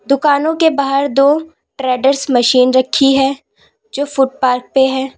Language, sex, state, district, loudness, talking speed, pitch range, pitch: Hindi, female, Uttar Pradesh, Lalitpur, -13 LUFS, 140 wpm, 265-285 Hz, 275 Hz